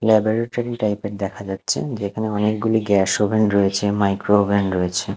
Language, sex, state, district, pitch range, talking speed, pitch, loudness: Bengali, male, Odisha, Nuapada, 100-110 Hz, 140 wpm, 105 Hz, -20 LUFS